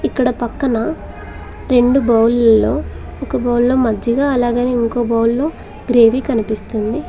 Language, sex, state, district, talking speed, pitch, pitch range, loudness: Telugu, female, Telangana, Mahabubabad, 100 wpm, 240 Hz, 230-245 Hz, -15 LUFS